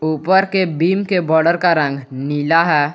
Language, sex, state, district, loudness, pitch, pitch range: Hindi, male, Jharkhand, Garhwa, -16 LUFS, 165 Hz, 145-180 Hz